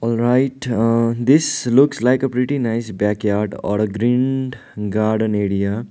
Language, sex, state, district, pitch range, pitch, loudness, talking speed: English, male, Sikkim, Gangtok, 105-130 Hz, 115 Hz, -18 LUFS, 140 wpm